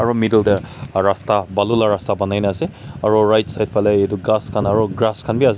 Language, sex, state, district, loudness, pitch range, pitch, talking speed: Nagamese, male, Nagaland, Kohima, -17 LUFS, 100-110 Hz, 105 Hz, 225 wpm